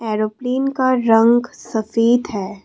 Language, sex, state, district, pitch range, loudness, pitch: Hindi, female, Assam, Kamrup Metropolitan, 215-250 Hz, -17 LUFS, 230 Hz